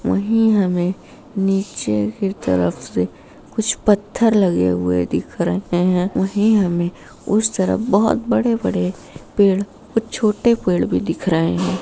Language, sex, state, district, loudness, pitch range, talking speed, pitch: Hindi, female, Uttar Pradesh, Budaun, -18 LUFS, 140-215 Hz, 120 wpm, 195 Hz